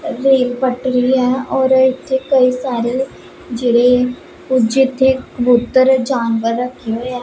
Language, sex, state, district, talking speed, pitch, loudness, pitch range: Punjabi, female, Punjab, Pathankot, 125 wpm, 255 Hz, -15 LUFS, 245-265 Hz